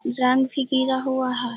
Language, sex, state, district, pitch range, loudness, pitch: Hindi, female, Bihar, Jahanabad, 255-265 Hz, -22 LUFS, 260 Hz